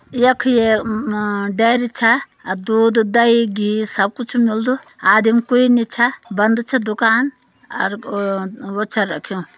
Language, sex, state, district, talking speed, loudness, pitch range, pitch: Garhwali, female, Uttarakhand, Uttarkashi, 145 wpm, -17 LUFS, 210-240 Hz, 225 Hz